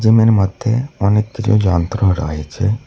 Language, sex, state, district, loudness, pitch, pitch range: Bengali, male, West Bengal, Cooch Behar, -16 LUFS, 105 Hz, 95-115 Hz